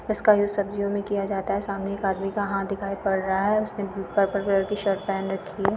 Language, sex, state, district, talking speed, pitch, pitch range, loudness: Hindi, female, Uttar Pradesh, Budaun, 250 wpm, 200 Hz, 195-205 Hz, -25 LUFS